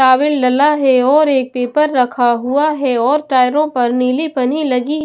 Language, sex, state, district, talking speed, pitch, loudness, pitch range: Hindi, female, Punjab, Pathankot, 165 wpm, 265 Hz, -14 LUFS, 250-295 Hz